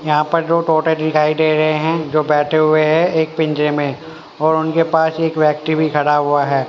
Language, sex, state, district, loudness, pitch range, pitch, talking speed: Hindi, male, Haryana, Rohtak, -15 LUFS, 150-160 Hz, 155 Hz, 215 wpm